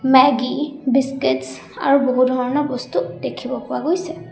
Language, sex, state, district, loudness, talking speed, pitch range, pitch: Assamese, female, Assam, Sonitpur, -19 LUFS, 125 wpm, 255-280 Hz, 265 Hz